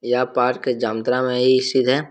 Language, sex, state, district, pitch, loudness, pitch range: Hindi, male, Jharkhand, Jamtara, 125 Hz, -19 LUFS, 125-130 Hz